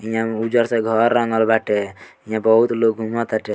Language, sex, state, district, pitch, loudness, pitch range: Bhojpuri, male, Bihar, Muzaffarpur, 115 Hz, -18 LUFS, 110-115 Hz